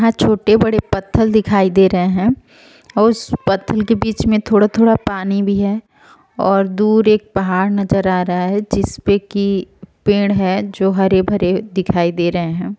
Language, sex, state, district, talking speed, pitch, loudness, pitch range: Hindi, female, Uttar Pradesh, Etah, 170 wpm, 200 Hz, -15 LUFS, 190-215 Hz